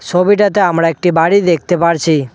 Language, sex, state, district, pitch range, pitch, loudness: Bengali, male, West Bengal, Cooch Behar, 165-185 Hz, 175 Hz, -12 LUFS